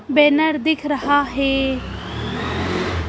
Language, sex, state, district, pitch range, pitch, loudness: Hindi, female, Madhya Pradesh, Bhopal, 275-300 Hz, 285 Hz, -19 LUFS